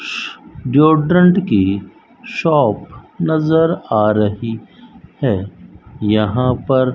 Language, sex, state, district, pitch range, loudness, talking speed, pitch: Hindi, male, Rajasthan, Bikaner, 105-160 Hz, -16 LUFS, 95 wpm, 125 Hz